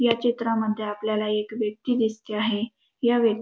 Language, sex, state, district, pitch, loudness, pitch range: Marathi, female, Maharashtra, Dhule, 220 Hz, -25 LUFS, 215-230 Hz